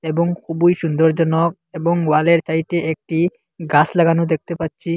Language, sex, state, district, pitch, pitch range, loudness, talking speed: Bengali, male, Assam, Hailakandi, 165 Hz, 160-170 Hz, -18 LUFS, 145 wpm